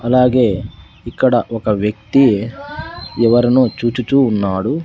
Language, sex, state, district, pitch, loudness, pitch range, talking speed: Telugu, male, Andhra Pradesh, Sri Satya Sai, 120 Hz, -15 LUFS, 105-125 Hz, 85 wpm